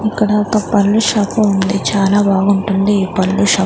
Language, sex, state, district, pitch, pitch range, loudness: Telugu, female, Andhra Pradesh, Manyam, 200 Hz, 195-210 Hz, -14 LUFS